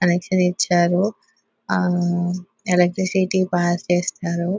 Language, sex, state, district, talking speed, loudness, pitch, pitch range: Telugu, female, Telangana, Nalgonda, 90 wpm, -20 LUFS, 180 Hz, 175-185 Hz